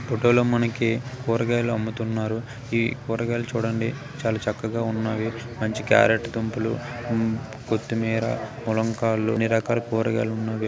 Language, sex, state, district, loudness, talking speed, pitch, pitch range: Telugu, male, Telangana, Nalgonda, -25 LUFS, 105 wpm, 115 Hz, 110-120 Hz